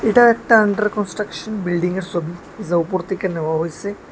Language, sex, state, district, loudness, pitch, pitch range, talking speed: Bengali, male, Tripura, West Tripura, -19 LUFS, 190 Hz, 175-210 Hz, 160 wpm